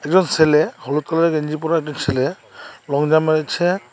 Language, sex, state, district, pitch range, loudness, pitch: Bengali, male, Tripura, Unakoti, 150-165 Hz, -18 LUFS, 155 Hz